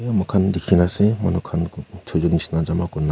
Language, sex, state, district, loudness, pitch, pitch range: Nagamese, male, Nagaland, Kohima, -20 LUFS, 90 Hz, 80-95 Hz